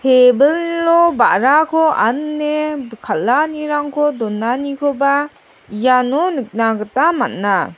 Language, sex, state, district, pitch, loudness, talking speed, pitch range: Garo, female, Meghalaya, South Garo Hills, 280 Hz, -15 LUFS, 70 wpm, 245-300 Hz